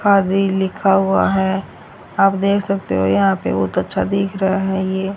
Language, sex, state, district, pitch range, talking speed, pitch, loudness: Hindi, female, Haryana, Rohtak, 190-195 Hz, 185 wpm, 195 Hz, -17 LUFS